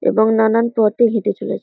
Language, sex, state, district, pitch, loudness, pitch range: Bengali, female, West Bengal, Kolkata, 220 Hz, -16 LUFS, 220-230 Hz